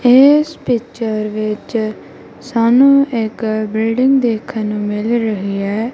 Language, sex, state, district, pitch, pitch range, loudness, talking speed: Punjabi, female, Punjab, Kapurthala, 225 Hz, 215-245 Hz, -15 LUFS, 110 wpm